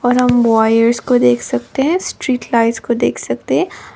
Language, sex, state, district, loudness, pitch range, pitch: Hindi, female, Nagaland, Dimapur, -15 LUFS, 225-245 Hz, 235 Hz